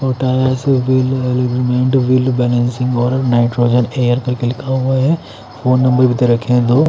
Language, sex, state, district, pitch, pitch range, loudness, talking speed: Hindi, male, Haryana, Charkhi Dadri, 125 Hz, 125-130 Hz, -14 LUFS, 175 wpm